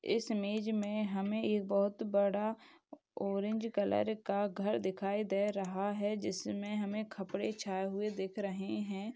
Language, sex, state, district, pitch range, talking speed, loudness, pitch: Hindi, female, Maharashtra, Sindhudurg, 200-215 Hz, 150 wpm, -36 LUFS, 205 Hz